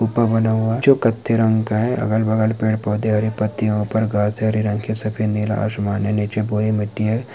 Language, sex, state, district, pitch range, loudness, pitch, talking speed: Hindi, male, Bihar, Araria, 105-110 Hz, -19 LUFS, 110 Hz, 205 wpm